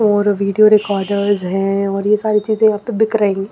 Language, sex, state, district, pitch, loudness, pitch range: Hindi, female, Punjab, Pathankot, 205 Hz, -15 LUFS, 200-215 Hz